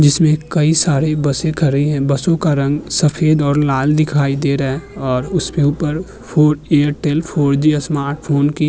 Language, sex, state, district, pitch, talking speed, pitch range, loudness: Hindi, male, Uttar Pradesh, Muzaffarnagar, 150 Hz, 180 wpm, 140-155 Hz, -15 LUFS